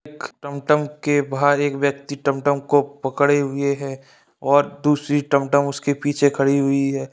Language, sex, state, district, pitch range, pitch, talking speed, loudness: Hindi, male, Bihar, Saharsa, 140-145 Hz, 140 Hz, 160 wpm, -20 LUFS